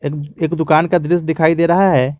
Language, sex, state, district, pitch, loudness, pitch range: Hindi, male, Jharkhand, Garhwa, 160 Hz, -15 LUFS, 150-170 Hz